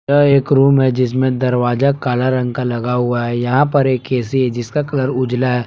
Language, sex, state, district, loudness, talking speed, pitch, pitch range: Hindi, male, Jharkhand, Palamu, -16 LUFS, 220 wpm, 130 Hz, 125-135 Hz